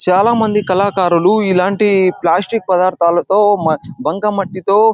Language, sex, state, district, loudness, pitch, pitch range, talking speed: Telugu, male, Andhra Pradesh, Chittoor, -14 LUFS, 190 Hz, 180-205 Hz, 110 wpm